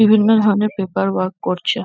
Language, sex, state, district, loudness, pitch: Bengali, female, West Bengal, Kolkata, -17 LUFS, 210 Hz